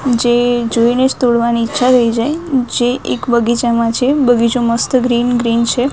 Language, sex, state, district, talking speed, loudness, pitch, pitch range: Gujarati, female, Gujarat, Gandhinagar, 160 wpm, -13 LUFS, 240 Hz, 235-255 Hz